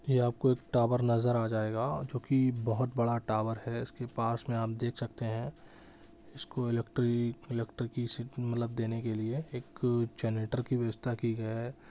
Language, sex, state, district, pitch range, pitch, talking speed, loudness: Hindi, male, Bihar, Saran, 115-125 Hz, 120 Hz, 165 wpm, -33 LUFS